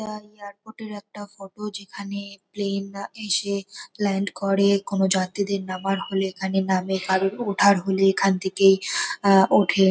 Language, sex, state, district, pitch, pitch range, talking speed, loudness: Bengali, female, West Bengal, North 24 Parganas, 195 Hz, 195-200 Hz, 145 wpm, -22 LUFS